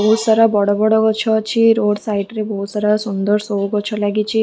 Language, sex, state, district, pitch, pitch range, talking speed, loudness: Odia, female, Odisha, Khordha, 210 Hz, 205-220 Hz, 215 wpm, -16 LUFS